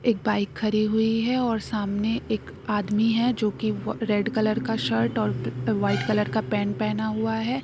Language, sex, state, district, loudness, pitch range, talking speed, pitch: Hindi, female, Bihar, East Champaran, -25 LUFS, 205-225 Hz, 180 wpm, 215 Hz